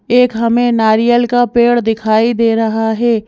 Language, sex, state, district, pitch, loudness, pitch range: Hindi, female, Madhya Pradesh, Bhopal, 230 Hz, -12 LUFS, 225-240 Hz